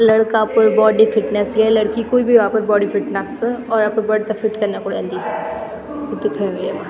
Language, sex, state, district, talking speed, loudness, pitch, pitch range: Garhwali, female, Uttarakhand, Tehri Garhwal, 200 wpm, -17 LUFS, 220 Hz, 215-225 Hz